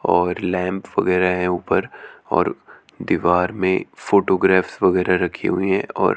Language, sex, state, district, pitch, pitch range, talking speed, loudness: Hindi, male, Chandigarh, Chandigarh, 90 Hz, 90-95 Hz, 135 wpm, -19 LUFS